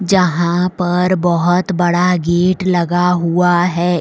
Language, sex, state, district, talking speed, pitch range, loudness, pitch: Hindi, female, Jharkhand, Deoghar, 120 wpm, 175-180 Hz, -14 LUFS, 175 Hz